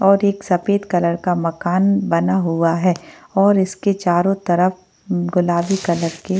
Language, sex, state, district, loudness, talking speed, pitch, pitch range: Hindi, female, Maharashtra, Chandrapur, -18 LUFS, 150 wpm, 180 Hz, 175-195 Hz